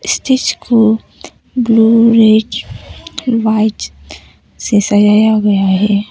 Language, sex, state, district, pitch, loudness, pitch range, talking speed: Hindi, female, Arunachal Pradesh, Papum Pare, 220 Hz, -11 LUFS, 205-230 Hz, 90 wpm